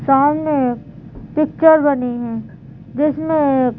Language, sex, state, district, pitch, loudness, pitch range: Hindi, female, Madhya Pradesh, Bhopal, 285 Hz, -16 LUFS, 250-305 Hz